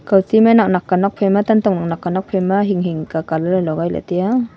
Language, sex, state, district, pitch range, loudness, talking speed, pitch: Wancho, female, Arunachal Pradesh, Longding, 175-205 Hz, -16 LUFS, 225 wpm, 190 Hz